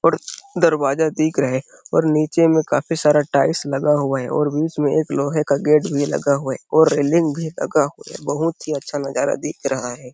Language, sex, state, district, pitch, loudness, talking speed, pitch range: Hindi, male, Chhattisgarh, Sarguja, 150 Hz, -19 LUFS, 205 wpm, 140-160 Hz